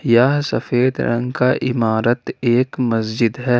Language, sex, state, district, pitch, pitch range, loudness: Hindi, male, Jharkhand, Ranchi, 120 Hz, 115-125 Hz, -18 LUFS